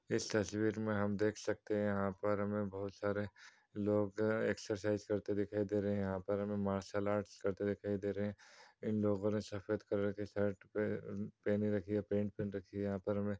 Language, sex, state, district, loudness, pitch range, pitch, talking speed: Hindi, male, Uttar Pradesh, Hamirpur, -38 LUFS, 100-105 Hz, 105 Hz, 215 wpm